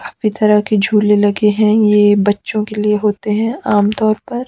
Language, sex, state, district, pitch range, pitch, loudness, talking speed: Hindi, male, Himachal Pradesh, Shimla, 210-215 Hz, 210 Hz, -14 LUFS, 190 wpm